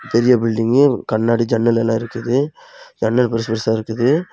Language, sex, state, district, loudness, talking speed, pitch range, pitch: Tamil, male, Tamil Nadu, Kanyakumari, -17 LUFS, 140 wpm, 115-125 Hz, 115 Hz